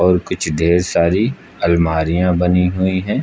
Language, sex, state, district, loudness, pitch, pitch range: Hindi, male, Uttar Pradesh, Lucknow, -16 LUFS, 90 Hz, 85-90 Hz